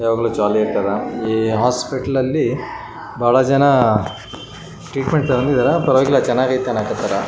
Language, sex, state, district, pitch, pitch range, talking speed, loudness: Kannada, male, Karnataka, Raichur, 125 Hz, 110-135 Hz, 125 wpm, -17 LUFS